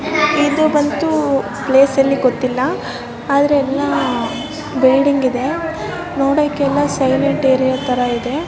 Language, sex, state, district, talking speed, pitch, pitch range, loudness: Kannada, male, Karnataka, Raichur, 115 wpm, 275 Hz, 260-295 Hz, -16 LUFS